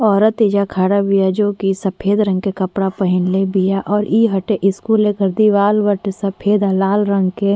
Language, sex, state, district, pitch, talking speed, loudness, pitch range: Bhojpuri, female, Uttar Pradesh, Ghazipur, 200 Hz, 200 wpm, -16 LUFS, 195-210 Hz